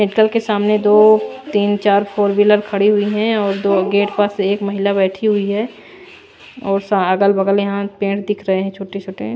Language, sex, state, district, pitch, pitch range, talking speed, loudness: Hindi, female, Bihar, Patna, 205 Hz, 200-210 Hz, 180 wpm, -16 LUFS